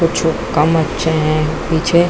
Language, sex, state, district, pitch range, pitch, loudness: Hindi, female, Chhattisgarh, Bilaspur, 155-165 Hz, 160 Hz, -15 LUFS